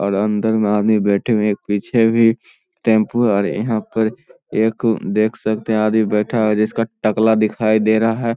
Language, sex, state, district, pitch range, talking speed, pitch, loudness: Hindi, male, Bihar, Samastipur, 105-115 Hz, 210 wpm, 110 Hz, -17 LUFS